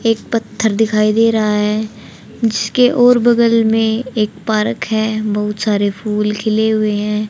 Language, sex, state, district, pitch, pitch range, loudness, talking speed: Hindi, female, Haryana, Charkhi Dadri, 215 Hz, 210-225 Hz, -15 LUFS, 165 wpm